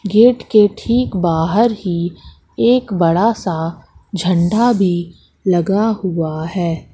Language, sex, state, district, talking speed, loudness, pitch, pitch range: Hindi, female, Madhya Pradesh, Katni, 110 wpm, -16 LUFS, 190 Hz, 170-220 Hz